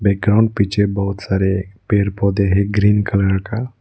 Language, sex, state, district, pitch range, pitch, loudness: Hindi, male, Arunachal Pradesh, Lower Dibang Valley, 100-105 Hz, 100 Hz, -17 LUFS